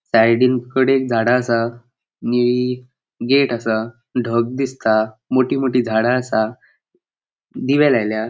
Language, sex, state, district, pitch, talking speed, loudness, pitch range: Konkani, male, Goa, North and South Goa, 120 Hz, 110 wpm, -18 LUFS, 115-130 Hz